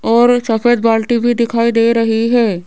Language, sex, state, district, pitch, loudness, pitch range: Hindi, female, Rajasthan, Jaipur, 230 Hz, -13 LUFS, 225-240 Hz